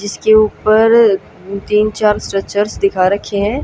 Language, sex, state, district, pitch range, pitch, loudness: Hindi, female, Haryana, Jhajjar, 200-215 Hz, 210 Hz, -13 LUFS